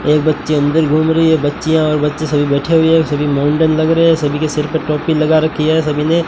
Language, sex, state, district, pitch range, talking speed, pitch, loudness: Hindi, male, Rajasthan, Bikaner, 150-160 Hz, 265 wpm, 155 Hz, -14 LUFS